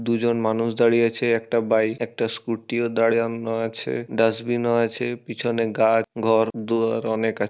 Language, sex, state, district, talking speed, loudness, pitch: Bengali, male, West Bengal, Purulia, 160 wpm, -22 LUFS, 115 Hz